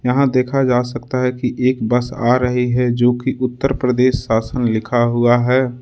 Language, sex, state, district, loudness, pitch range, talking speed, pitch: Hindi, male, Uttar Pradesh, Lucknow, -17 LUFS, 120-130 Hz, 195 wpm, 125 Hz